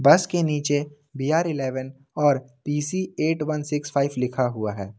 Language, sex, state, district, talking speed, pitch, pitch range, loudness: Hindi, male, Jharkhand, Ranchi, 170 wpm, 145 Hz, 130-150 Hz, -24 LUFS